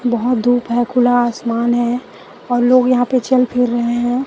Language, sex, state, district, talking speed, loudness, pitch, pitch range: Hindi, female, Chhattisgarh, Raipur, 195 wpm, -15 LUFS, 245 Hz, 240-250 Hz